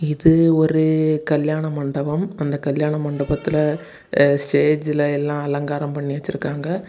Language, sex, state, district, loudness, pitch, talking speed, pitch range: Tamil, male, Tamil Nadu, Kanyakumari, -20 LUFS, 150 Hz, 115 wpm, 145-155 Hz